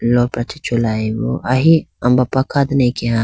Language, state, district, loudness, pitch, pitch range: Idu Mishmi, Arunachal Pradesh, Lower Dibang Valley, -16 LUFS, 120 Hz, 115-135 Hz